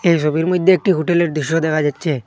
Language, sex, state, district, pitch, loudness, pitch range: Bengali, male, Assam, Hailakandi, 165 Hz, -16 LUFS, 155-175 Hz